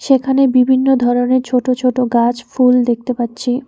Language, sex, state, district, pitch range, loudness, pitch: Bengali, female, West Bengal, Alipurduar, 245-260 Hz, -14 LUFS, 250 Hz